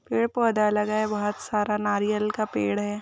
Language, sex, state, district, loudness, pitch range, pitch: Hindi, female, Bihar, Purnia, -25 LUFS, 205-215 Hz, 210 Hz